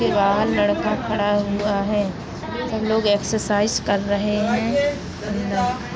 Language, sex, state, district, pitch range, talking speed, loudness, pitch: Hindi, male, Uttarakhand, Tehri Garhwal, 200-220 Hz, 120 wpm, -21 LUFS, 205 Hz